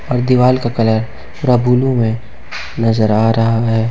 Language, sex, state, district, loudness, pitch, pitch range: Hindi, male, Jharkhand, Ranchi, -14 LUFS, 115 Hz, 115-125 Hz